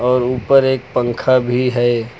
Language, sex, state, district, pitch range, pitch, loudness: Hindi, male, Uttar Pradesh, Lucknow, 120-130 Hz, 125 Hz, -16 LUFS